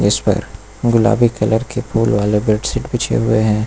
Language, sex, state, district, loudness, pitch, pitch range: Hindi, male, Uttar Pradesh, Lucknow, -16 LUFS, 110 Hz, 105-115 Hz